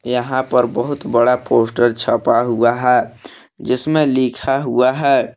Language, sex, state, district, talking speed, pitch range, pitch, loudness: Hindi, male, Jharkhand, Palamu, 135 wpm, 120-130 Hz, 125 Hz, -16 LUFS